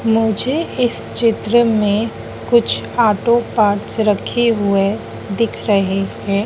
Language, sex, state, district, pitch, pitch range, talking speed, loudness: Hindi, female, Madhya Pradesh, Dhar, 220 Hz, 205-235 Hz, 110 wpm, -16 LUFS